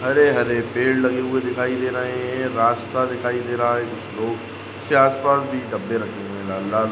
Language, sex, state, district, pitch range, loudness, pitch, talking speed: Hindi, male, Maharashtra, Sindhudurg, 115-130 Hz, -21 LUFS, 125 Hz, 180 wpm